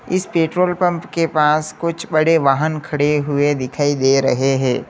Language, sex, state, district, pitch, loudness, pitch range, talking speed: Hindi, male, Uttar Pradesh, Lalitpur, 155 Hz, -17 LUFS, 145-165 Hz, 170 wpm